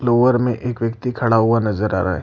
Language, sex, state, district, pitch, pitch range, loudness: Hindi, male, Bihar, Lakhisarai, 115 Hz, 110-125 Hz, -18 LUFS